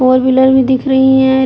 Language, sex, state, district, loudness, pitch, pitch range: Hindi, female, Uttar Pradesh, Deoria, -10 LUFS, 265 Hz, 260-265 Hz